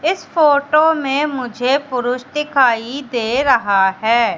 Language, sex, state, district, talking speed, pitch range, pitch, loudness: Hindi, female, Madhya Pradesh, Katni, 125 wpm, 235-295 Hz, 270 Hz, -16 LUFS